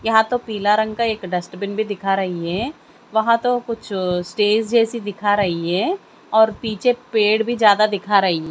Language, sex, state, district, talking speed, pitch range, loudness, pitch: Hindi, female, Haryana, Jhajjar, 190 wpm, 195-230 Hz, -19 LUFS, 215 Hz